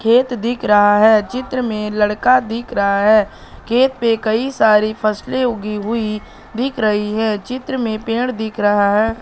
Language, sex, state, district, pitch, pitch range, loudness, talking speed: Hindi, female, Madhya Pradesh, Katni, 220 Hz, 210-245 Hz, -16 LUFS, 170 wpm